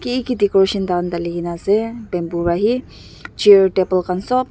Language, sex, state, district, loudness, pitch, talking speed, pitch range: Nagamese, female, Nagaland, Dimapur, -17 LUFS, 195 Hz, 175 wpm, 175-225 Hz